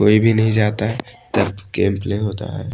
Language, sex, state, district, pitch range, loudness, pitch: Hindi, male, Odisha, Malkangiri, 100-115 Hz, -19 LUFS, 105 Hz